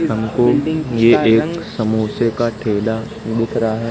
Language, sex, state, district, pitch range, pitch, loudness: Hindi, male, Madhya Pradesh, Katni, 110-120 Hz, 115 Hz, -17 LUFS